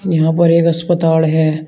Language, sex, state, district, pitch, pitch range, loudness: Hindi, male, Uttar Pradesh, Shamli, 165 Hz, 160-170 Hz, -13 LUFS